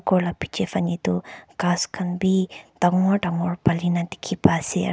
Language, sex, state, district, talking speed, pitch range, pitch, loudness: Nagamese, male, Nagaland, Kohima, 180 wpm, 170-185 Hz, 175 Hz, -23 LUFS